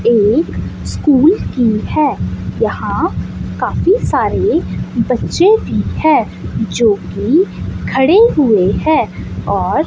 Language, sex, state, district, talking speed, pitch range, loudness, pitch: Hindi, female, Chandigarh, Chandigarh, 95 wpm, 205-320 Hz, -14 LUFS, 240 Hz